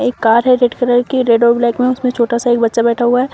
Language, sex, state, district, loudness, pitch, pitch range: Hindi, female, Uttar Pradesh, Shamli, -13 LUFS, 240 Hz, 235-250 Hz